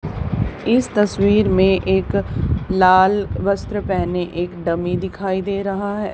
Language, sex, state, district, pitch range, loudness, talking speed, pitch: Hindi, female, Haryana, Charkhi Dadri, 175-200 Hz, -18 LUFS, 125 wpm, 190 Hz